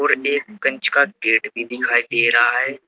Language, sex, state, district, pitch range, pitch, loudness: Hindi, male, Uttar Pradesh, Saharanpur, 120-140 Hz, 125 Hz, -18 LUFS